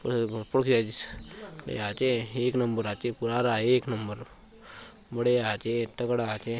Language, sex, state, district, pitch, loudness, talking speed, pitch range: Halbi, male, Chhattisgarh, Bastar, 120 Hz, -28 LUFS, 75 wpm, 110-125 Hz